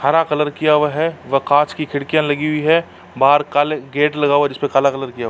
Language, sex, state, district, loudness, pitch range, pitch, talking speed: Hindi, male, Uttar Pradesh, Jalaun, -17 LUFS, 140-155 Hz, 145 Hz, 280 wpm